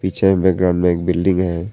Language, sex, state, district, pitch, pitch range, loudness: Hindi, male, Arunachal Pradesh, Papum Pare, 90 Hz, 90-95 Hz, -16 LUFS